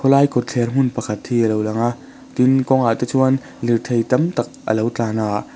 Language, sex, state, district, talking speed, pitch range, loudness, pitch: Mizo, male, Mizoram, Aizawl, 205 wpm, 115-130 Hz, -19 LUFS, 120 Hz